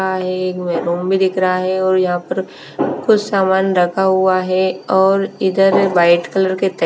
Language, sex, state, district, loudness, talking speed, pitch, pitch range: Hindi, female, Bihar, West Champaran, -15 LUFS, 165 wpm, 185 Hz, 185-190 Hz